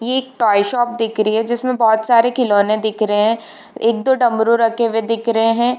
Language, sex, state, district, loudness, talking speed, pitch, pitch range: Hindi, female, Chhattisgarh, Bilaspur, -16 LUFS, 230 wpm, 230 Hz, 220-240 Hz